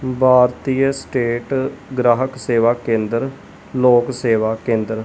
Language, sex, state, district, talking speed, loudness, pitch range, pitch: Punjabi, male, Punjab, Kapurthala, 95 wpm, -17 LUFS, 115-130 Hz, 125 Hz